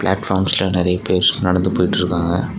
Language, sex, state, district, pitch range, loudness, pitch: Tamil, male, Tamil Nadu, Nilgiris, 90-95 Hz, -17 LUFS, 95 Hz